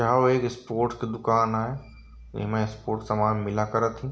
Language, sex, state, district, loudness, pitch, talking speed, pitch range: Hindi, male, Uttar Pradesh, Varanasi, -26 LUFS, 115 Hz, 205 wpm, 105-120 Hz